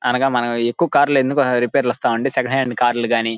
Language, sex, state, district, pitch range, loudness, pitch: Telugu, male, Andhra Pradesh, Guntur, 120-135 Hz, -18 LUFS, 125 Hz